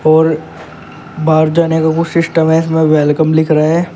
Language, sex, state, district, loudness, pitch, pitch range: Hindi, male, Uttar Pradesh, Shamli, -12 LUFS, 160 Hz, 155-165 Hz